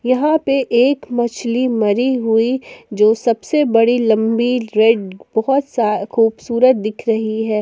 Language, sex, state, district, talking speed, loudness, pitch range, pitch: Hindi, female, Jharkhand, Palamu, 135 wpm, -16 LUFS, 220-255 Hz, 235 Hz